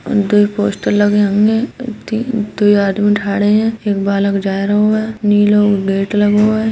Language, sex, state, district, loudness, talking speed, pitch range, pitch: Hindi, female, Uttar Pradesh, Etah, -14 LUFS, 170 wpm, 200-215 Hz, 205 Hz